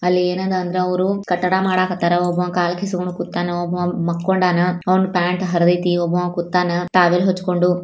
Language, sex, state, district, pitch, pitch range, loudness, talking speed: Kannada, female, Karnataka, Bijapur, 180 Hz, 175-185 Hz, -18 LUFS, 145 wpm